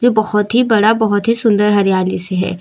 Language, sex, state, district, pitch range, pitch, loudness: Hindi, female, Uttar Pradesh, Lucknow, 190-220 Hz, 210 Hz, -14 LUFS